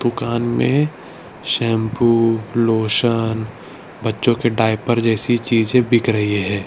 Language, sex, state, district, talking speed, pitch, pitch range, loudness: Hindi, male, Gujarat, Valsad, 110 wpm, 115 Hz, 110-120 Hz, -18 LUFS